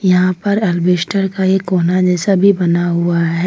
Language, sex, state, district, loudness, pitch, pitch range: Hindi, female, Jharkhand, Ranchi, -14 LUFS, 180 Hz, 175-195 Hz